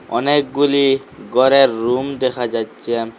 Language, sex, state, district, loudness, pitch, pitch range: Bengali, male, Assam, Hailakandi, -16 LUFS, 130 Hz, 120-140 Hz